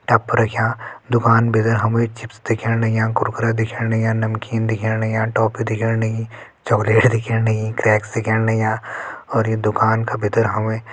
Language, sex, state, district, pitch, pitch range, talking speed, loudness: Hindi, male, Uttarakhand, Tehri Garhwal, 110 Hz, 110-115 Hz, 165 wpm, -19 LUFS